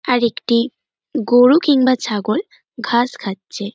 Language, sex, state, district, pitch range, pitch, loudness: Bengali, male, West Bengal, North 24 Parganas, 220-260 Hz, 240 Hz, -17 LUFS